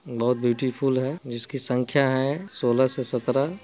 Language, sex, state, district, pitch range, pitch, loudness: Hindi, male, Bihar, Muzaffarpur, 125-135 Hz, 130 Hz, -24 LUFS